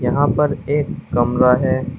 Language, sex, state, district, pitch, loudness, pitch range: Hindi, male, Uttar Pradesh, Shamli, 130 Hz, -17 LUFS, 125-145 Hz